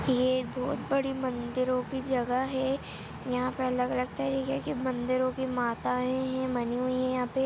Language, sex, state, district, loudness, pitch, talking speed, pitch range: Hindi, female, Bihar, Jahanabad, -30 LUFS, 255 Hz, 170 wpm, 250-260 Hz